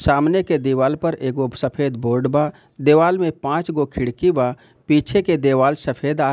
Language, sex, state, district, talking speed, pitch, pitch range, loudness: Bhojpuri, male, Bihar, Gopalganj, 180 wpm, 145 Hz, 135-160 Hz, -19 LUFS